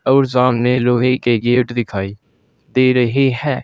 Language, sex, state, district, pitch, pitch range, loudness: Hindi, male, Uttar Pradesh, Saharanpur, 125 Hz, 120-130 Hz, -15 LUFS